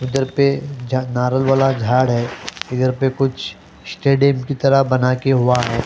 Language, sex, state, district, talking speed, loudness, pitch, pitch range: Hindi, male, Haryana, Jhajjar, 145 wpm, -17 LUFS, 130 Hz, 125-135 Hz